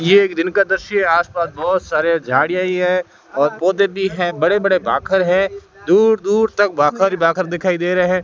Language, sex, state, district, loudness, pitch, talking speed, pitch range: Hindi, male, Rajasthan, Bikaner, -16 LUFS, 185 Hz, 210 wpm, 170-195 Hz